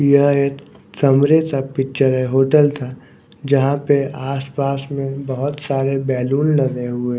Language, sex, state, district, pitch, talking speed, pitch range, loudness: Hindi, male, Bihar, West Champaran, 135 Hz, 140 wpm, 135-140 Hz, -18 LUFS